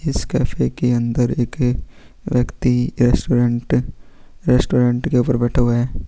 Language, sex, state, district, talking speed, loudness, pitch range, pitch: Hindi, male, Chhattisgarh, Sukma, 130 wpm, -18 LUFS, 120-125 Hz, 125 Hz